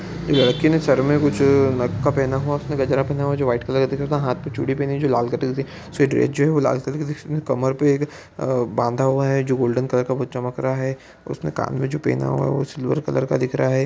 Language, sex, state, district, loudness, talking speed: Maithili, male, Bihar, Araria, -21 LUFS, 300 wpm